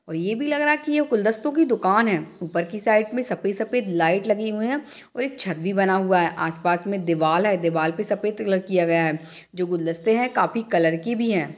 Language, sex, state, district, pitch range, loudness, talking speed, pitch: Hindi, female, Uttar Pradesh, Jalaun, 170-225 Hz, -22 LUFS, 250 wpm, 195 Hz